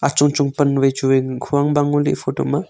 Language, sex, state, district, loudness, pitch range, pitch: Wancho, male, Arunachal Pradesh, Longding, -18 LUFS, 135-145 Hz, 145 Hz